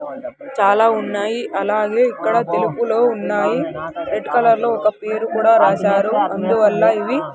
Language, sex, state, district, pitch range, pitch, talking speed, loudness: Telugu, male, Andhra Pradesh, Sri Satya Sai, 210-240 Hz, 225 Hz, 120 wpm, -17 LUFS